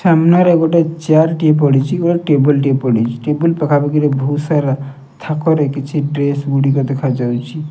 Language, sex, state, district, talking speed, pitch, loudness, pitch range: Odia, male, Odisha, Nuapada, 125 wpm, 145 Hz, -14 LUFS, 140-160 Hz